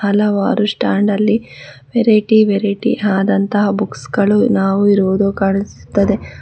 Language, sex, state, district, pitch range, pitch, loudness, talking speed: Kannada, female, Karnataka, Bangalore, 195-210 Hz, 205 Hz, -15 LUFS, 95 wpm